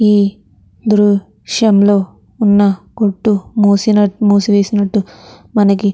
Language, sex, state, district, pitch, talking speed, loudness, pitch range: Telugu, female, Andhra Pradesh, Chittoor, 205 Hz, 100 wpm, -13 LUFS, 200-210 Hz